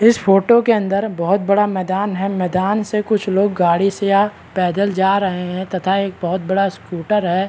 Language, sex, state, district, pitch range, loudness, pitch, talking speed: Hindi, male, Chhattisgarh, Balrampur, 185-205 Hz, -17 LUFS, 195 Hz, 200 wpm